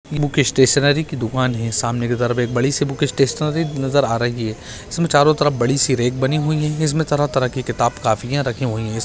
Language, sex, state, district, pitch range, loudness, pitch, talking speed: Hindi, male, Bihar, Purnia, 120-145 Hz, -18 LUFS, 135 Hz, 250 wpm